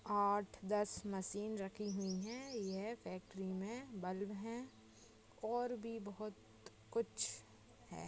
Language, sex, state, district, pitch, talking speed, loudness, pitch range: Hindi, female, Maharashtra, Nagpur, 205 Hz, 120 wpm, -44 LUFS, 190-225 Hz